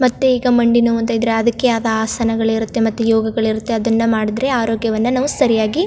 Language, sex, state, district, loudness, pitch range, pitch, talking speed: Kannada, female, Karnataka, Chamarajanagar, -16 LUFS, 225-240 Hz, 230 Hz, 175 wpm